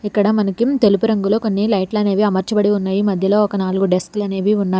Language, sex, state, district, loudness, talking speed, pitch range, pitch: Telugu, female, Telangana, Hyderabad, -17 LUFS, 185 wpm, 195-210 Hz, 205 Hz